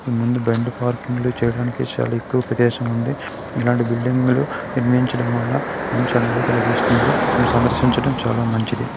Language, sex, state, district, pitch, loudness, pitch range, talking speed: Telugu, male, Karnataka, Gulbarga, 120 Hz, -19 LUFS, 120-125 Hz, 105 wpm